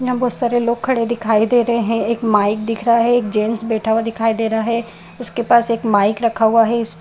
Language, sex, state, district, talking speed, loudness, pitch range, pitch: Hindi, female, Bihar, Madhepura, 310 wpm, -17 LUFS, 220-235 Hz, 230 Hz